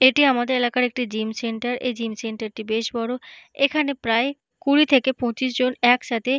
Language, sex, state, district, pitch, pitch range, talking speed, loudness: Bengali, female, West Bengal, Paschim Medinipur, 250 Hz, 230-265 Hz, 190 wpm, -22 LUFS